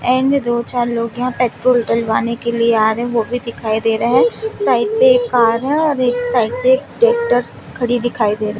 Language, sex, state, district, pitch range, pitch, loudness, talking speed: Hindi, female, Chhattisgarh, Raipur, 230-255 Hz, 240 Hz, -16 LUFS, 195 wpm